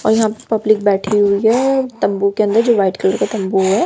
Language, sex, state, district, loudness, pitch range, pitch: Hindi, female, Haryana, Jhajjar, -15 LUFS, 200-225 Hz, 215 Hz